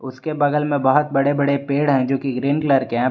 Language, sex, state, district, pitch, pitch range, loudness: Hindi, male, Jharkhand, Garhwa, 140 Hz, 135-145 Hz, -19 LUFS